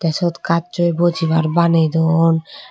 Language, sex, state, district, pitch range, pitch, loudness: Chakma, female, Tripura, Dhalai, 160-170 Hz, 165 Hz, -16 LUFS